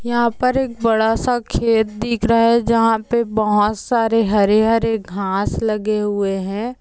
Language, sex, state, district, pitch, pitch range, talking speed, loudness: Hindi, female, Andhra Pradesh, Chittoor, 225 Hz, 210-235 Hz, 150 wpm, -17 LUFS